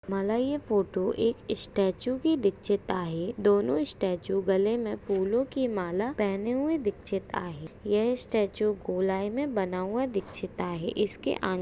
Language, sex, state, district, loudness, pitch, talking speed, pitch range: Hindi, female, Maharashtra, Aurangabad, -29 LUFS, 205 Hz, 155 wpm, 190-235 Hz